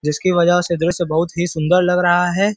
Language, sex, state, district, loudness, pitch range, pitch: Hindi, male, Uttar Pradesh, Varanasi, -16 LUFS, 170-180 Hz, 175 Hz